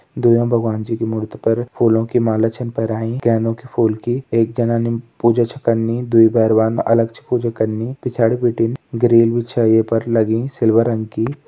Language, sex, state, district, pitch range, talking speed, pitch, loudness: Hindi, male, Uttarakhand, Tehri Garhwal, 115-120 Hz, 195 wpm, 115 Hz, -17 LUFS